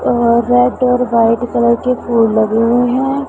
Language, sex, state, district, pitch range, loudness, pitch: Hindi, female, Punjab, Pathankot, 235-250 Hz, -13 LUFS, 240 Hz